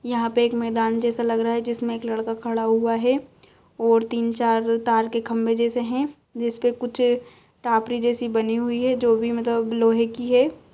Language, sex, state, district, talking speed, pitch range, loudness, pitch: Hindi, female, Bihar, Lakhisarai, 195 wpm, 230-240 Hz, -22 LUFS, 235 Hz